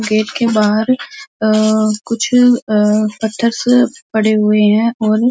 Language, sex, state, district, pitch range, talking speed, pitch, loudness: Hindi, female, Uttar Pradesh, Muzaffarnagar, 215-245 Hz, 145 wpm, 220 Hz, -14 LUFS